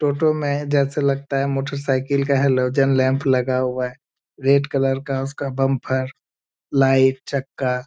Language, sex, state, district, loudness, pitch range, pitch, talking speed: Hindi, male, Bihar, Jamui, -20 LUFS, 130-140 Hz, 135 Hz, 150 wpm